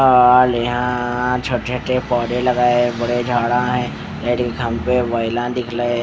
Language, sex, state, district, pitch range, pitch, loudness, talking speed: Hindi, male, Odisha, Khordha, 120-125 Hz, 120 Hz, -18 LUFS, 160 wpm